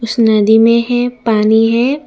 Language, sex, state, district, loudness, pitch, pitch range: Hindi, female, Tripura, West Tripura, -11 LUFS, 230 Hz, 220-245 Hz